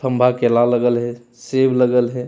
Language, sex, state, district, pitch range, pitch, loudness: Hindi, male, Bihar, Jamui, 120-125 Hz, 120 Hz, -17 LUFS